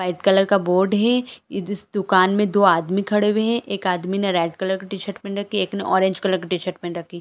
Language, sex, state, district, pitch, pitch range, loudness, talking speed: Hindi, female, Chhattisgarh, Bilaspur, 195 Hz, 185-200 Hz, -20 LUFS, 265 wpm